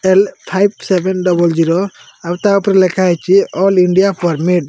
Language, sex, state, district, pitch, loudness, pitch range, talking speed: Odia, male, Odisha, Malkangiri, 185 Hz, -13 LUFS, 175-195 Hz, 180 wpm